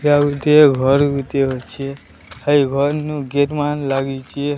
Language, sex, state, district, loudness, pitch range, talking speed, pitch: Odia, male, Odisha, Sambalpur, -17 LUFS, 135-145 Hz, 155 wpm, 140 Hz